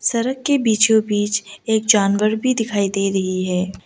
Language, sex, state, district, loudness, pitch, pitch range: Hindi, female, Arunachal Pradesh, Lower Dibang Valley, -18 LUFS, 210 Hz, 195-225 Hz